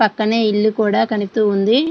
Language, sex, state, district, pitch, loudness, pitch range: Telugu, female, Andhra Pradesh, Srikakulam, 215 Hz, -16 LUFS, 210-220 Hz